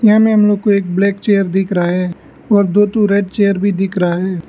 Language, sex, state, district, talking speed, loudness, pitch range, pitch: Hindi, male, Arunachal Pradesh, Lower Dibang Valley, 265 wpm, -14 LUFS, 185-205 Hz, 200 Hz